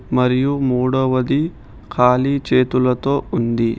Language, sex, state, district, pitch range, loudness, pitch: Telugu, male, Telangana, Hyderabad, 125-135 Hz, -17 LUFS, 130 Hz